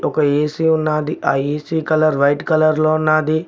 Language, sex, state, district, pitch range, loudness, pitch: Telugu, male, Telangana, Mahabubabad, 150-155 Hz, -17 LUFS, 155 Hz